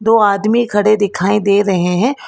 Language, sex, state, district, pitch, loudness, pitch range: Hindi, female, Karnataka, Bangalore, 205 Hz, -13 LUFS, 200-225 Hz